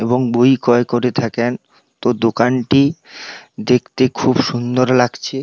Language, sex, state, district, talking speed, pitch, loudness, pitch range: Bengali, male, West Bengal, Paschim Medinipur, 135 wpm, 125 Hz, -16 LUFS, 120-130 Hz